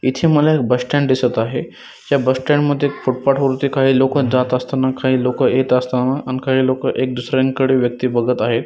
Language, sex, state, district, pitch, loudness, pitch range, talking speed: Marathi, male, Maharashtra, Dhule, 130 Hz, -17 LUFS, 125-135 Hz, 185 wpm